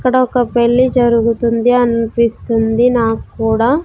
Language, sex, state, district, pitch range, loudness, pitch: Telugu, female, Andhra Pradesh, Sri Satya Sai, 230-245 Hz, -13 LUFS, 235 Hz